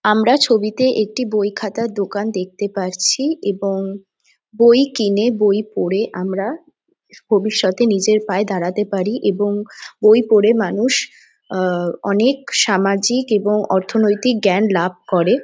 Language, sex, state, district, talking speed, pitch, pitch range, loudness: Bengali, female, West Bengal, Jhargram, 120 wpm, 210 Hz, 195-230 Hz, -17 LUFS